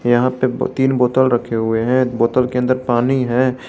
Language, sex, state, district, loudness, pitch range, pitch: Hindi, male, Jharkhand, Garhwa, -17 LUFS, 120-130 Hz, 125 Hz